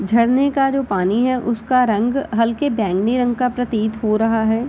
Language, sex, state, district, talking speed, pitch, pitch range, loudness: Hindi, female, Bihar, Bhagalpur, 190 wpm, 235 Hz, 220-255 Hz, -18 LUFS